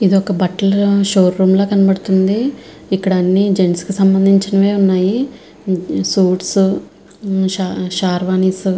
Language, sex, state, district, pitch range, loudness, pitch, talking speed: Telugu, female, Andhra Pradesh, Visakhapatnam, 185-195 Hz, -15 LUFS, 190 Hz, 115 wpm